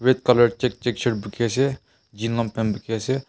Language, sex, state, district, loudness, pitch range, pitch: Nagamese, male, Nagaland, Kohima, -22 LUFS, 110-125 Hz, 120 Hz